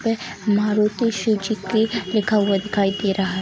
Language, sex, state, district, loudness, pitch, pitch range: Hindi, female, Bihar, Sitamarhi, -21 LUFS, 210 Hz, 195-220 Hz